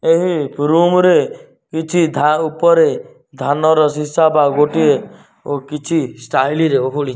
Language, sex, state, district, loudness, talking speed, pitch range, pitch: Odia, male, Odisha, Nuapada, -15 LUFS, 115 wpm, 145-170 Hz, 155 Hz